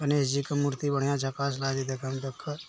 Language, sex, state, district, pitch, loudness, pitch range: Hindi, male, Bihar, Araria, 140 Hz, -30 LUFS, 135-145 Hz